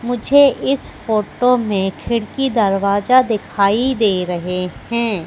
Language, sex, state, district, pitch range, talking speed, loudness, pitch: Hindi, female, Madhya Pradesh, Katni, 200-245 Hz, 115 wpm, -16 LUFS, 220 Hz